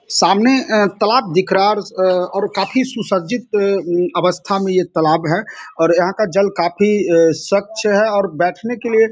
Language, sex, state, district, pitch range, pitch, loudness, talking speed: Hindi, male, Bihar, Samastipur, 180-215 Hz, 195 Hz, -16 LUFS, 195 wpm